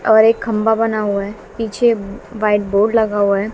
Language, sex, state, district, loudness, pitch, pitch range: Hindi, female, Bihar, West Champaran, -16 LUFS, 215 Hz, 205-225 Hz